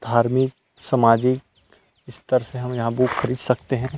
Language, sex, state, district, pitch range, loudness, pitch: Hindi, male, Chhattisgarh, Rajnandgaon, 115-130 Hz, -21 LUFS, 125 Hz